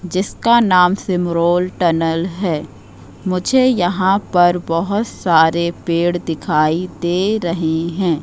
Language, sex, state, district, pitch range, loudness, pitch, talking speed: Hindi, female, Madhya Pradesh, Katni, 165-185 Hz, -16 LUFS, 175 Hz, 110 wpm